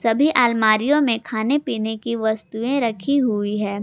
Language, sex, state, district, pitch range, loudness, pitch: Hindi, female, Jharkhand, Garhwa, 220-260 Hz, -20 LUFS, 230 Hz